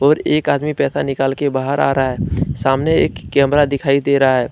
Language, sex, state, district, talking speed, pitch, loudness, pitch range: Hindi, male, Jharkhand, Deoghar, 225 wpm, 140 Hz, -16 LUFS, 135-140 Hz